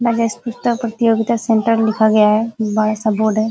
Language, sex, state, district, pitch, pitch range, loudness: Hindi, female, Uttar Pradesh, Ghazipur, 225 Hz, 215-230 Hz, -16 LUFS